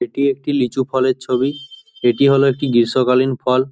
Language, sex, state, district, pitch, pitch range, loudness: Bengali, male, West Bengal, Jhargram, 130 Hz, 125-140 Hz, -17 LUFS